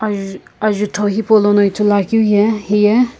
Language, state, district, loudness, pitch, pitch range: Sumi, Nagaland, Kohima, -14 LUFS, 210 Hz, 205-215 Hz